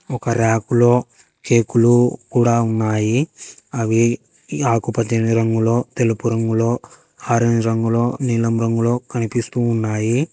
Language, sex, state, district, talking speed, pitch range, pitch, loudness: Telugu, female, Telangana, Hyderabad, 100 wpm, 115-120 Hz, 115 Hz, -18 LUFS